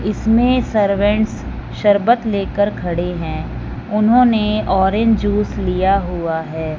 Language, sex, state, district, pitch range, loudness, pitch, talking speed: Hindi, male, Punjab, Fazilka, 180-215 Hz, -16 LUFS, 205 Hz, 105 wpm